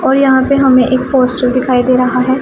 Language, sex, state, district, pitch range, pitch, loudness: Hindi, female, Punjab, Pathankot, 250-265 Hz, 255 Hz, -11 LUFS